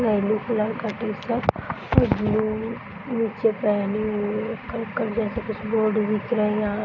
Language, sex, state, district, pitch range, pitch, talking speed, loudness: Hindi, male, Bihar, East Champaran, 210-225 Hz, 215 Hz, 140 wpm, -24 LUFS